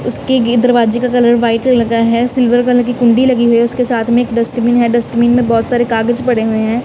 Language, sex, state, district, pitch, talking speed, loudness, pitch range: Hindi, female, Punjab, Kapurthala, 240 Hz, 245 wpm, -12 LUFS, 235-245 Hz